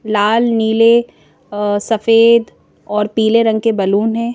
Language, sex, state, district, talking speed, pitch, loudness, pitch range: Hindi, female, Madhya Pradesh, Bhopal, 140 wpm, 225 Hz, -13 LUFS, 210-230 Hz